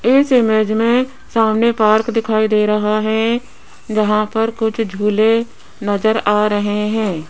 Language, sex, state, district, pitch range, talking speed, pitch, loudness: Hindi, female, Rajasthan, Jaipur, 210-225 Hz, 140 wpm, 220 Hz, -16 LUFS